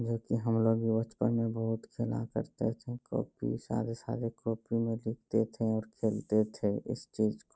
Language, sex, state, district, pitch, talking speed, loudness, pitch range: Hindi, male, Bihar, Jahanabad, 115 Hz, 175 wpm, -33 LUFS, 110-115 Hz